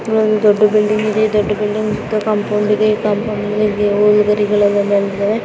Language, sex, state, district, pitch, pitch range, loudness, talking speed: Kannada, female, Karnataka, Raichur, 210 Hz, 210-215 Hz, -15 LUFS, 130 wpm